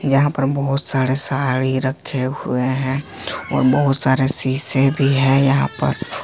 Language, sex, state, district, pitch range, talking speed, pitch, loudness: Hindi, male, Jharkhand, Ranchi, 130-140 Hz, 155 wpm, 135 Hz, -18 LUFS